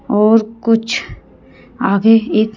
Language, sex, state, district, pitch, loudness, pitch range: Hindi, female, Haryana, Rohtak, 225 Hz, -14 LUFS, 215-230 Hz